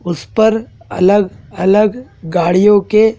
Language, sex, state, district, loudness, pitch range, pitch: Hindi, male, Madhya Pradesh, Dhar, -13 LUFS, 185-220 Hz, 205 Hz